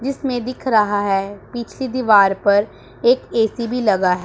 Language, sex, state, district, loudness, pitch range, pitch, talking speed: Hindi, female, Punjab, Pathankot, -18 LUFS, 205-250 Hz, 225 Hz, 170 wpm